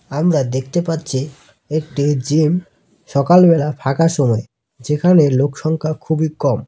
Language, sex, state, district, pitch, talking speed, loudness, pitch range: Bengali, male, West Bengal, Cooch Behar, 150 Hz, 110 wpm, -16 LUFS, 135-165 Hz